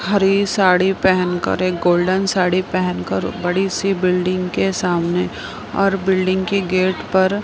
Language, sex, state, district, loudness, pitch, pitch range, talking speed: Hindi, female, Maharashtra, Mumbai Suburban, -18 LUFS, 185 Hz, 180-195 Hz, 155 wpm